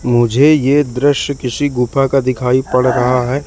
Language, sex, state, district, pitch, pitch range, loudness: Hindi, male, Madhya Pradesh, Katni, 130 Hz, 125-140 Hz, -14 LUFS